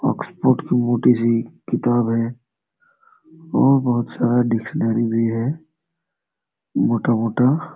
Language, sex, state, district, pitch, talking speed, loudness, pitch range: Hindi, male, Jharkhand, Sahebganj, 120 Hz, 110 wpm, -19 LUFS, 115-160 Hz